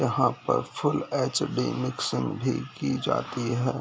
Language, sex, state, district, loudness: Hindi, male, Uttar Pradesh, Jalaun, -28 LUFS